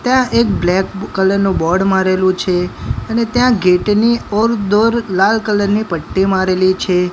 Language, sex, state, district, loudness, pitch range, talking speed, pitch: Gujarati, male, Gujarat, Gandhinagar, -14 LUFS, 185-225 Hz, 170 wpm, 195 Hz